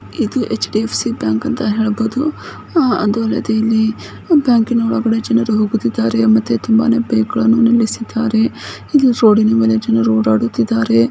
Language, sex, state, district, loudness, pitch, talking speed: Kannada, female, Karnataka, Bijapur, -15 LUFS, 220 Hz, 125 wpm